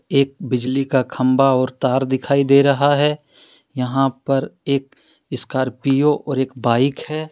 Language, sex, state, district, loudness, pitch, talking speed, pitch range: Hindi, male, Jharkhand, Deoghar, -18 LUFS, 135 Hz, 150 wpm, 130-140 Hz